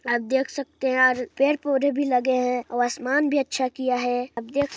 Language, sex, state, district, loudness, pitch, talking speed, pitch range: Hindi, male, Chhattisgarh, Sarguja, -23 LUFS, 260 Hz, 215 wpm, 250-280 Hz